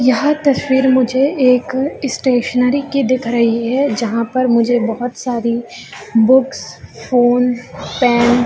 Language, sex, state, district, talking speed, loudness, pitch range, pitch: Hindi, female, Bihar, Jamui, 140 wpm, -15 LUFS, 240-265 Hz, 250 Hz